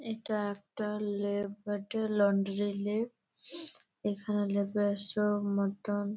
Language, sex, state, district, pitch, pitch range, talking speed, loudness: Bengali, female, West Bengal, Malda, 205 Hz, 200-210 Hz, 60 wpm, -33 LUFS